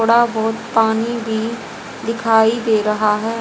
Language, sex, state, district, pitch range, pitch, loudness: Hindi, female, Haryana, Jhajjar, 220-230 Hz, 225 Hz, -17 LUFS